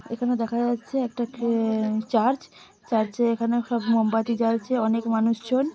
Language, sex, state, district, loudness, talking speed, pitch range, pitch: Bengali, female, West Bengal, Malda, -24 LUFS, 145 wpm, 225-240 Hz, 230 Hz